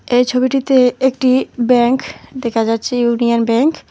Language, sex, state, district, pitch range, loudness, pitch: Bengali, female, West Bengal, Alipurduar, 235-260 Hz, -15 LUFS, 250 Hz